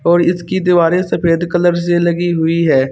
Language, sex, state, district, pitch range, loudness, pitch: Hindi, male, Uttar Pradesh, Saharanpur, 170-175 Hz, -14 LUFS, 175 Hz